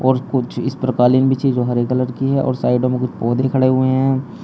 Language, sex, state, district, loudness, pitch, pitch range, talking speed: Hindi, male, Uttar Pradesh, Shamli, -17 LUFS, 130 Hz, 125-130 Hz, 270 wpm